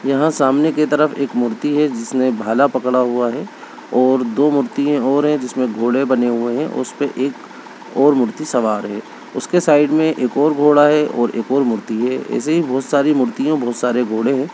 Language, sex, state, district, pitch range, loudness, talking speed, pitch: Hindi, male, Bihar, Begusarai, 120-145 Hz, -17 LUFS, 205 wpm, 130 Hz